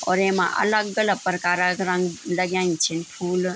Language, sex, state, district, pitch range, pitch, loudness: Garhwali, female, Uttarakhand, Tehri Garhwal, 180-190 Hz, 180 Hz, -22 LUFS